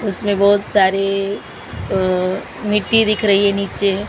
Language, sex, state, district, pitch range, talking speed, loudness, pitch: Hindi, female, Maharashtra, Mumbai Suburban, 195-205 Hz, 130 wpm, -16 LUFS, 200 Hz